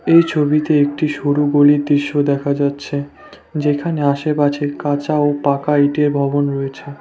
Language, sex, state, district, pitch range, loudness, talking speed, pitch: Bengali, male, West Bengal, Cooch Behar, 145-150 Hz, -16 LUFS, 135 wpm, 145 Hz